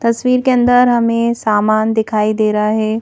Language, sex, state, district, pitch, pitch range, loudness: Hindi, female, Madhya Pradesh, Bhopal, 225 Hz, 215-240 Hz, -14 LUFS